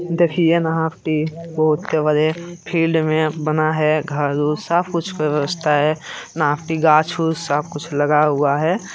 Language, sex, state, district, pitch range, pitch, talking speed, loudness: Hindi, female, Bihar, Jamui, 150-165 Hz, 155 Hz, 140 wpm, -18 LUFS